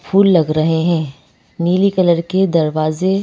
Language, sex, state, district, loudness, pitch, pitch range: Hindi, female, Madhya Pradesh, Bhopal, -15 LUFS, 170 Hz, 155-190 Hz